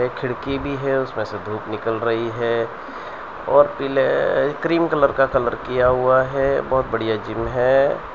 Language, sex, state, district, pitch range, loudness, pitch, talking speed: Hindi, male, Gujarat, Valsad, 115-135 Hz, -20 LUFS, 125 Hz, 160 wpm